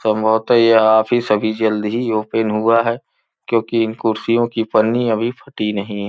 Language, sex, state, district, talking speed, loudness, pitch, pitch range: Hindi, male, Uttar Pradesh, Gorakhpur, 175 wpm, -17 LUFS, 110 Hz, 110-115 Hz